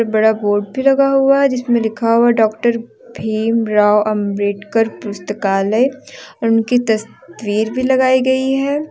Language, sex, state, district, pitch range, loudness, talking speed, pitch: Hindi, female, Jharkhand, Deoghar, 210-260 Hz, -15 LUFS, 140 wpm, 225 Hz